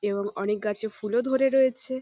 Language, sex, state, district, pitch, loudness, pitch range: Bengali, female, West Bengal, North 24 Parganas, 220 Hz, -26 LUFS, 210-260 Hz